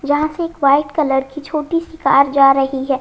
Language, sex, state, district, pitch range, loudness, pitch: Hindi, female, Haryana, Jhajjar, 270-305 Hz, -16 LUFS, 285 Hz